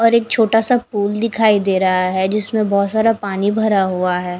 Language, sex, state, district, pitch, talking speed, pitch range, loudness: Hindi, female, Punjab, Fazilka, 205 Hz, 220 wpm, 190-225 Hz, -16 LUFS